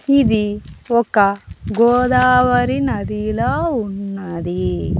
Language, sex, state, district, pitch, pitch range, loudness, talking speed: Telugu, female, Andhra Pradesh, Annamaya, 220 Hz, 200-250 Hz, -17 LUFS, 60 wpm